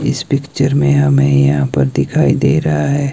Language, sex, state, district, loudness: Hindi, male, Himachal Pradesh, Shimla, -13 LUFS